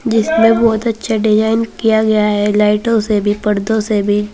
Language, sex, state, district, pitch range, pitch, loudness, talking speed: Hindi, female, Uttar Pradesh, Saharanpur, 210-225 Hz, 220 Hz, -14 LUFS, 180 wpm